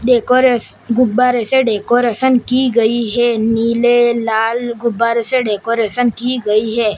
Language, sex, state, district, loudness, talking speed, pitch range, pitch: Hindi, male, Gujarat, Gandhinagar, -14 LUFS, 130 wpm, 230-245 Hz, 235 Hz